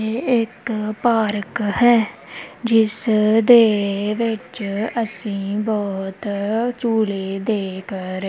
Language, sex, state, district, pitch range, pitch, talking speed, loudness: Punjabi, female, Punjab, Kapurthala, 200-230 Hz, 215 Hz, 85 wpm, -19 LUFS